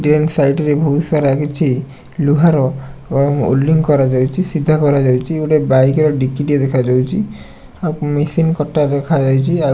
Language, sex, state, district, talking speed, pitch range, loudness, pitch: Odia, male, Odisha, Nuapada, 140 wpm, 135-155 Hz, -14 LUFS, 145 Hz